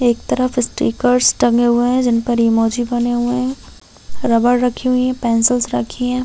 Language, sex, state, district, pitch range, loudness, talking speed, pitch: Hindi, female, Chhattisgarh, Raigarh, 235-250 Hz, -16 LUFS, 190 wpm, 240 Hz